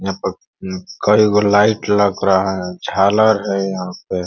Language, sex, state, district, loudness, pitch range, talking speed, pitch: Hindi, male, Uttar Pradesh, Ghazipur, -16 LUFS, 95-105 Hz, 185 wpm, 100 Hz